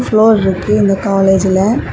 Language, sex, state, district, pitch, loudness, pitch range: Tamil, female, Tamil Nadu, Kanyakumari, 195 Hz, -12 LUFS, 190-210 Hz